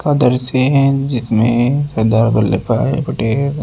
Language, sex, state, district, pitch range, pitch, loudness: Hindi, male, Rajasthan, Jaipur, 115-140 Hz, 125 Hz, -14 LUFS